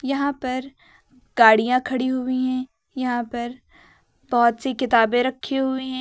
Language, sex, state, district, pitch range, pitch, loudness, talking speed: Hindi, female, Uttar Pradesh, Lucknow, 245-265 Hz, 255 Hz, -21 LUFS, 140 wpm